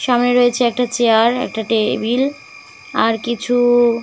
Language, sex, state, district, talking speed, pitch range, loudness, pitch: Bengali, female, West Bengal, Malda, 150 wpm, 230-245 Hz, -16 LUFS, 240 Hz